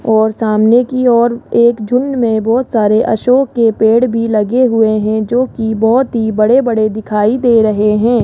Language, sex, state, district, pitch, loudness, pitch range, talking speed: Hindi, female, Rajasthan, Jaipur, 230 Hz, -12 LUFS, 220-245 Hz, 180 wpm